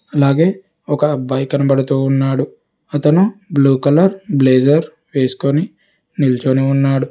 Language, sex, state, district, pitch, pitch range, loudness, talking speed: Telugu, male, Telangana, Hyderabad, 140 Hz, 135-160 Hz, -15 LUFS, 100 wpm